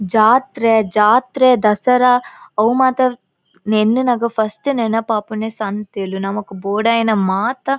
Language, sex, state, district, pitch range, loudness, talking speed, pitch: Tulu, female, Karnataka, Dakshina Kannada, 210-250 Hz, -16 LUFS, 100 wpm, 220 Hz